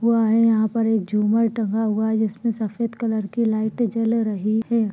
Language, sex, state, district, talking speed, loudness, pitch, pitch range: Hindi, female, Chhattisgarh, Bilaspur, 195 wpm, -21 LUFS, 225 Hz, 215-230 Hz